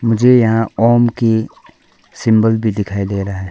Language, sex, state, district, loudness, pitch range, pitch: Hindi, female, Arunachal Pradesh, Lower Dibang Valley, -14 LUFS, 100-115 Hz, 110 Hz